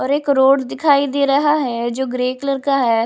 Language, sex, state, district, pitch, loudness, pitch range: Hindi, female, Himachal Pradesh, Shimla, 275 Hz, -17 LUFS, 255-280 Hz